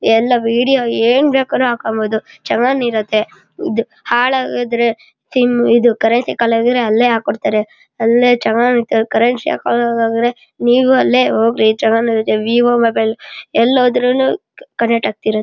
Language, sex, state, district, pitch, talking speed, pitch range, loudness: Kannada, male, Karnataka, Shimoga, 235 Hz, 95 wpm, 225-245 Hz, -14 LUFS